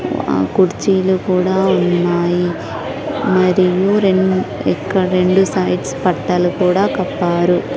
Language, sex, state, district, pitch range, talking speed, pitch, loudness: Telugu, female, Andhra Pradesh, Sri Satya Sai, 175-190 Hz, 95 wpm, 185 Hz, -15 LUFS